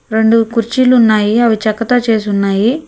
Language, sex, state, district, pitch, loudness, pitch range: Telugu, female, Telangana, Hyderabad, 225 Hz, -12 LUFS, 215-240 Hz